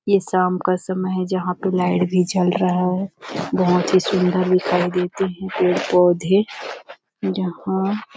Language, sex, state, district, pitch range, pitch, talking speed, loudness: Hindi, female, Chhattisgarh, Rajnandgaon, 180-190 Hz, 185 Hz, 145 wpm, -20 LUFS